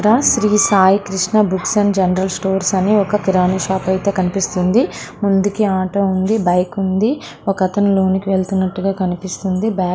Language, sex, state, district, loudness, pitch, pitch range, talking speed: Telugu, female, Andhra Pradesh, Srikakulam, -16 LUFS, 190 Hz, 185-205 Hz, 145 wpm